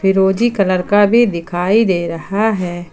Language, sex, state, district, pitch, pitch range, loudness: Hindi, female, Jharkhand, Ranchi, 190 Hz, 175-205 Hz, -15 LUFS